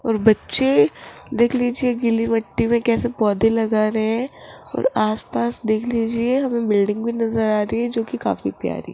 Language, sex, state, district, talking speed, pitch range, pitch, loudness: Hindi, female, Rajasthan, Jaipur, 190 wpm, 220-240 Hz, 230 Hz, -20 LUFS